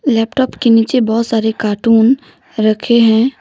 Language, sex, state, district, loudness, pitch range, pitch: Hindi, female, Jharkhand, Deoghar, -13 LUFS, 220-250 Hz, 230 Hz